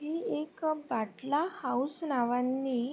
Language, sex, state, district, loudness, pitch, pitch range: Marathi, female, Maharashtra, Sindhudurg, -32 LUFS, 270 Hz, 245-305 Hz